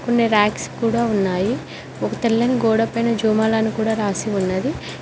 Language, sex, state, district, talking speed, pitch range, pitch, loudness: Telugu, female, Telangana, Mahabubabad, 145 wpm, 205-230 Hz, 220 Hz, -20 LUFS